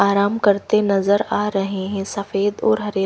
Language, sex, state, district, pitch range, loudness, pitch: Hindi, female, Himachal Pradesh, Shimla, 195-210 Hz, -19 LUFS, 200 Hz